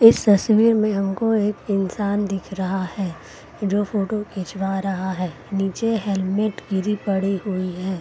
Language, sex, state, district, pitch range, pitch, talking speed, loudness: Hindi, female, Bihar, Gaya, 190-210 Hz, 195 Hz, 165 wpm, -22 LUFS